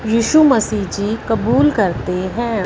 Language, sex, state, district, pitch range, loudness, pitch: Hindi, female, Punjab, Fazilka, 200-235 Hz, -16 LUFS, 220 Hz